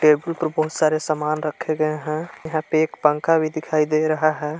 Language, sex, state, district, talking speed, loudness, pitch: Hindi, male, Jharkhand, Palamu, 220 wpm, -21 LUFS, 155 Hz